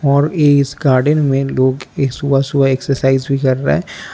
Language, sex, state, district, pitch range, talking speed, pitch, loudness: Hindi, male, Arunachal Pradesh, Lower Dibang Valley, 135-140 Hz, 190 wpm, 135 Hz, -14 LUFS